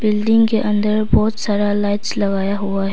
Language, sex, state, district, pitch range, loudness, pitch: Hindi, female, Arunachal Pradesh, Papum Pare, 205-215 Hz, -17 LUFS, 210 Hz